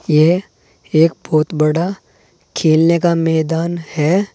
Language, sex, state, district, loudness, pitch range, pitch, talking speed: Hindi, male, Uttar Pradesh, Saharanpur, -15 LUFS, 155-170 Hz, 165 Hz, 110 wpm